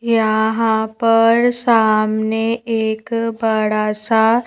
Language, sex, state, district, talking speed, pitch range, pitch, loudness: Hindi, female, Madhya Pradesh, Bhopal, 80 wpm, 220-230 Hz, 225 Hz, -16 LUFS